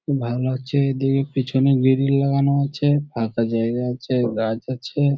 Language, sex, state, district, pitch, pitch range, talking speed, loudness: Bengali, male, West Bengal, Kolkata, 135 Hz, 125-140 Hz, 150 wpm, -21 LUFS